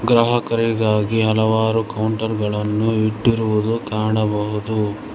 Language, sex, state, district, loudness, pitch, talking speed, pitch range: Kannada, male, Karnataka, Bangalore, -19 LUFS, 110 Hz, 70 wpm, 105-115 Hz